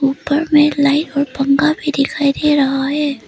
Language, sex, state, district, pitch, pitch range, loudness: Hindi, female, Arunachal Pradesh, Papum Pare, 285 Hz, 275-295 Hz, -15 LUFS